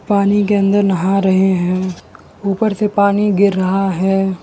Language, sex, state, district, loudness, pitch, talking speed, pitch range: Hindi, male, Gujarat, Valsad, -15 LUFS, 195 Hz, 165 wpm, 190-200 Hz